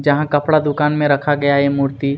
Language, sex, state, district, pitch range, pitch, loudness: Hindi, male, Chhattisgarh, Kabirdham, 140-150 Hz, 145 Hz, -16 LUFS